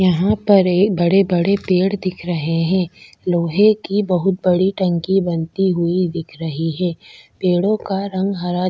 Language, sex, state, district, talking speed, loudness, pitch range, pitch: Hindi, female, Chhattisgarh, Bastar, 150 wpm, -18 LUFS, 175-195 Hz, 185 Hz